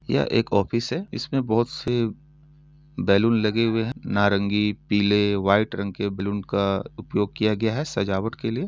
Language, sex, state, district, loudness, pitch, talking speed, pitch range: Hindi, male, Uttar Pradesh, Etah, -23 LUFS, 110 Hz, 180 wpm, 100-120 Hz